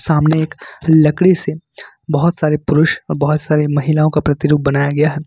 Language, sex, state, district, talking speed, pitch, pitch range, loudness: Hindi, male, Jharkhand, Ranchi, 170 wpm, 155 Hz, 150-160 Hz, -15 LUFS